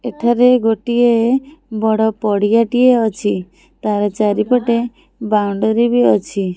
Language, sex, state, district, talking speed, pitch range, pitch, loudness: Odia, female, Odisha, Khordha, 100 wpm, 210-240 Hz, 225 Hz, -15 LUFS